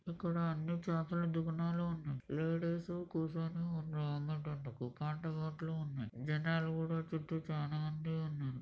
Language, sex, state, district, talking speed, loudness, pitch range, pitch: Telugu, male, Andhra Pradesh, Krishna, 130 wpm, -40 LUFS, 150-165 Hz, 160 Hz